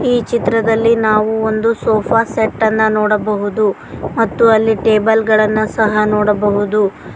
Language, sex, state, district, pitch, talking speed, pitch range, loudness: Kannada, female, Karnataka, Koppal, 220 Hz, 110 wpm, 215-225 Hz, -14 LUFS